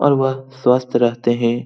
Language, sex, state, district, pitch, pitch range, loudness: Hindi, male, Bihar, Lakhisarai, 125 Hz, 120-135 Hz, -17 LUFS